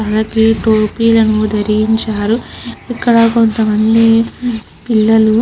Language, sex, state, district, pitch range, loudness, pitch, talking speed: Telugu, female, Andhra Pradesh, Krishna, 215-230 Hz, -12 LUFS, 220 Hz, 90 wpm